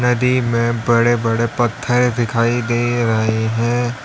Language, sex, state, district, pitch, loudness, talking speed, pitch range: Hindi, male, Uttar Pradesh, Lalitpur, 120 Hz, -17 LUFS, 135 wpm, 115-120 Hz